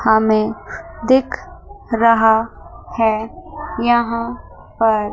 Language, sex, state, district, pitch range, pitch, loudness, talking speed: Hindi, female, Chandigarh, Chandigarh, 220-235 Hz, 225 Hz, -17 LUFS, 70 wpm